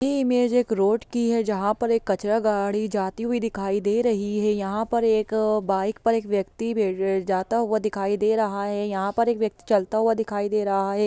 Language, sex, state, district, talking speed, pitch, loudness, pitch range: Hindi, female, Bihar, Saran, 210 wpm, 215 Hz, -24 LUFS, 200-225 Hz